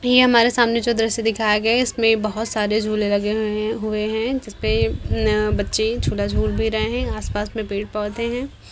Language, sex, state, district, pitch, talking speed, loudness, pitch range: Hindi, female, Bihar, Begusarai, 215 Hz, 185 wpm, -20 LUFS, 205-230 Hz